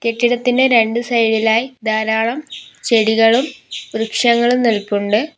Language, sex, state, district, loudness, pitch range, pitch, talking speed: Malayalam, female, Kerala, Kollam, -15 LUFS, 220-245 Hz, 230 Hz, 80 wpm